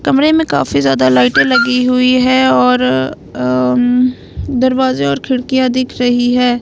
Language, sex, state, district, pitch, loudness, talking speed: Hindi, female, Himachal Pradesh, Shimla, 250 Hz, -12 LUFS, 155 wpm